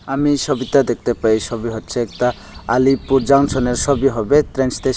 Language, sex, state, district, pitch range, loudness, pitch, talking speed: Bengali, male, Tripura, Unakoti, 115-135 Hz, -17 LUFS, 130 Hz, 180 wpm